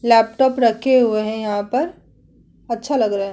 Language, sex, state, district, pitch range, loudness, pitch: Hindi, female, Uttarakhand, Tehri Garhwal, 215-260 Hz, -18 LUFS, 230 Hz